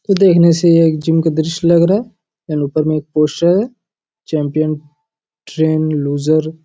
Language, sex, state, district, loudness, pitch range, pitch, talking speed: Hindi, male, Chhattisgarh, Raigarh, -14 LUFS, 155-170 Hz, 160 Hz, 160 wpm